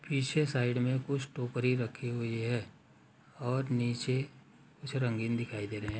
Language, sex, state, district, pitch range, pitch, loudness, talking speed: Hindi, male, Uttar Pradesh, Ghazipur, 120-135 Hz, 125 Hz, -34 LUFS, 160 wpm